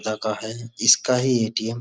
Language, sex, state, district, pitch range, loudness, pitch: Hindi, male, Uttar Pradesh, Budaun, 110-120 Hz, -21 LUFS, 115 Hz